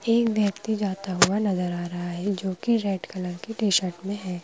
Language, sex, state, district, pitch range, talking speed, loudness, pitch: Hindi, female, Madhya Pradesh, Bhopal, 180-210 Hz, 215 wpm, -25 LUFS, 195 Hz